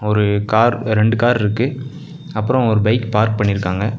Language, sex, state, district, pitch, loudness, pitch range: Tamil, male, Tamil Nadu, Nilgiris, 110 Hz, -16 LUFS, 105-120 Hz